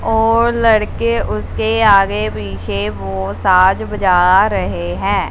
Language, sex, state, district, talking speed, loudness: Hindi, female, Punjab, Fazilka, 115 wpm, -15 LUFS